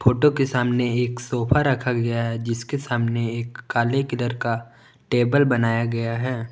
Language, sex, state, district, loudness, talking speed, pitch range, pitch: Hindi, male, Jharkhand, Palamu, -22 LUFS, 165 wpm, 115-125 Hz, 120 Hz